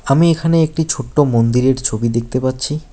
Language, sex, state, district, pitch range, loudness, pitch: Bengali, male, West Bengal, Alipurduar, 125-155 Hz, -16 LUFS, 135 Hz